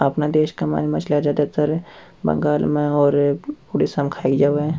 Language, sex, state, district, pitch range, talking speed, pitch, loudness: Rajasthani, male, Rajasthan, Churu, 130-150 Hz, 165 wpm, 145 Hz, -20 LUFS